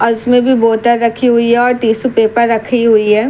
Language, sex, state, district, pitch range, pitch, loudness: Hindi, female, Bihar, Katihar, 225-245 Hz, 235 Hz, -11 LUFS